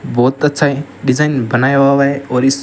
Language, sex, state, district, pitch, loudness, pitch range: Hindi, male, Rajasthan, Bikaner, 140 Hz, -13 LUFS, 130-140 Hz